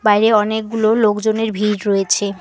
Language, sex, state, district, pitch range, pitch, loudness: Bengali, female, West Bengal, Alipurduar, 205-220 Hz, 210 Hz, -16 LUFS